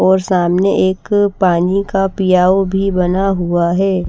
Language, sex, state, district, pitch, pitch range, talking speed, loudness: Hindi, female, Bihar, Patna, 190 Hz, 180-195 Hz, 145 wpm, -14 LUFS